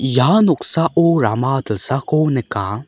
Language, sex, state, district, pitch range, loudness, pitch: Garo, male, Meghalaya, South Garo Hills, 120-165 Hz, -16 LUFS, 135 Hz